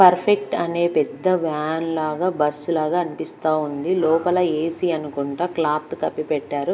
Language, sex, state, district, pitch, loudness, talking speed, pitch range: Telugu, female, Andhra Pradesh, Manyam, 160 Hz, -22 LUFS, 135 wpm, 150-175 Hz